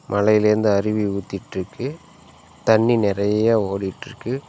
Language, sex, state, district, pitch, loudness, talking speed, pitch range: Tamil, male, Tamil Nadu, Nilgiris, 105 Hz, -20 LUFS, 80 wpm, 100-120 Hz